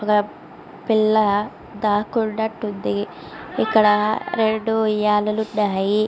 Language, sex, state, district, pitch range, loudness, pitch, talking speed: Telugu, female, Andhra Pradesh, Visakhapatnam, 210-220 Hz, -20 LUFS, 215 Hz, 70 wpm